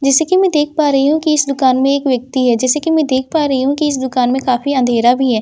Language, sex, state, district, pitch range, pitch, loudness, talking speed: Hindi, female, Delhi, New Delhi, 255-300 Hz, 275 Hz, -14 LUFS, 320 wpm